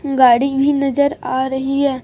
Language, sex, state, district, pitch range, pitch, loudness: Hindi, female, Chhattisgarh, Raipur, 260-280 Hz, 275 Hz, -16 LUFS